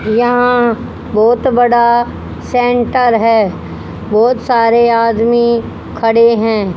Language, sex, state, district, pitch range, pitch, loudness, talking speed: Hindi, female, Haryana, Rohtak, 225-245 Hz, 235 Hz, -12 LUFS, 90 wpm